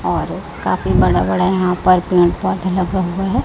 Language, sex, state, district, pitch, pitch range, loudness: Hindi, male, Chhattisgarh, Raipur, 185 Hz, 175-185 Hz, -16 LUFS